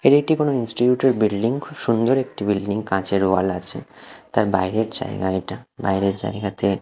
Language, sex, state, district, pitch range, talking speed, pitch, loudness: Bengali, male, Odisha, Khordha, 95-125 Hz, 160 wpm, 105 Hz, -21 LUFS